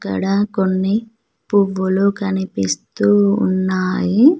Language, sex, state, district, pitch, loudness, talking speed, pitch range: Telugu, female, Telangana, Mahabubabad, 190 Hz, -17 LUFS, 70 wpm, 185-200 Hz